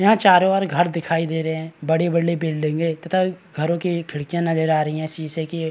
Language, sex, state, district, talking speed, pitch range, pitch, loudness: Hindi, male, Bihar, Araria, 210 wpm, 160-175 Hz, 165 Hz, -21 LUFS